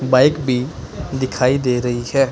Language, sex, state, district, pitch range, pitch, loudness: Hindi, male, Punjab, Kapurthala, 125-135 Hz, 130 Hz, -18 LUFS